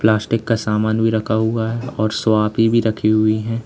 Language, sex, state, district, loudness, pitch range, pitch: Hindi, male, Uttar Pradesh, Lalitpur, -18 LUFS, 110-115 Hz, 110 Hz